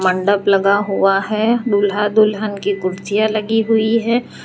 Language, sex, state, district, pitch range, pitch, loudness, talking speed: Hindi, female, Gujarat, Valsad, 200-220 Hz, 210 Hz, -16 LUFS, 150 wpm